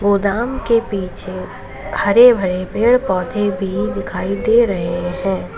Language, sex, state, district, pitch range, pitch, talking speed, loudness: Hindi, female, Uttar Pradesh, Lalitpur, 185-230 Hz, 200 Hz, 130 wpm, -17 LUFS